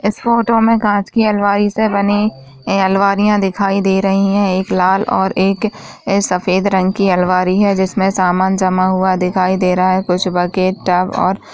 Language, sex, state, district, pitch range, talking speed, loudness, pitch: Hindi, female, Uttar Pradesh, Varanasi, 185-200 Hz, 185 wpm, -14 LUFS, 190 Hz